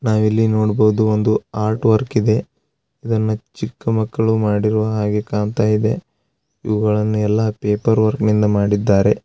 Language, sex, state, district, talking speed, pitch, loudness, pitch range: Kannada, male, Karnataka, Raichur, 130 wpm, 110 Hz, -17 LUFS, 105-110 Hz